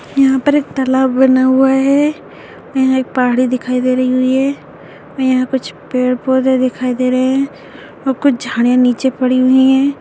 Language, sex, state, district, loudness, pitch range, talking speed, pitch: Hindi, female, Bihar, Madhepura, -14 LUFS, 255-265 Hz, 175 wpm, 260 Hz